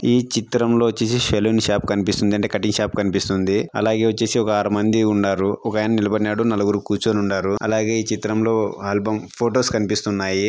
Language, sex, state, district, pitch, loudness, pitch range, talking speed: Telugu, male, Andhra Pradesh, Anantapur, 105 Hz, -20 LUFS, 100-110 Hz, 165 wpm